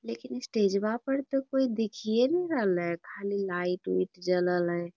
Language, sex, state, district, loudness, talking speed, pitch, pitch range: Magahi, female, Bihar, Lakhisarai, -29 LUFS, 145 wpm, 205 Hz, 180-250 Hz